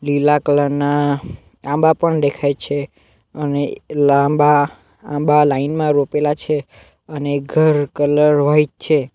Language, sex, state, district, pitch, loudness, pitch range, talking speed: Gujarati, male, Gujarat, Navsari, 145 Hz, -16 LUFS, 140-150 Hz, 130 wpm